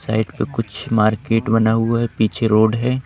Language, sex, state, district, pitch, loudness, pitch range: Hindi, male, Madhya Pradesh, Katni, 115 Hz, -18 LUFS, 110-115 Hz